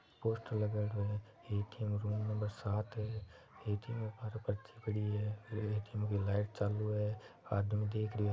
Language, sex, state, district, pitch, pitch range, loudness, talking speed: Marwari, male, Rajasthan, Nagaur, 105 Hz, 105-110 Hz, -39 LUFS, 165 wpm